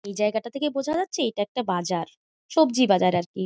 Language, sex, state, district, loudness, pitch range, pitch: Bengali, female, West Bengal, Malda, -24 LUFS, 190-280 Hz, 210 Hz